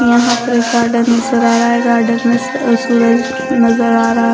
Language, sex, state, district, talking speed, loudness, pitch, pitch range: Hindi, female, Odisha, Khordha, 165 wpm, -12 LUFS, 235 Hz, 235-240 Hz